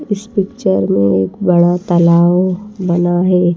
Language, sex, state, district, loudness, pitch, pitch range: Hindi, female, Madhya Pradesh, Bhopal, -13 LUFS, 175 Hz, 170-190 Hz